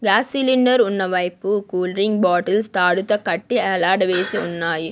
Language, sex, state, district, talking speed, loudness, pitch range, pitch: Telugu, female, Andhra Pradesh, Sri Satya Sai, 135 wpm, -19 LUFS, 180-210 Hz, 190 Hz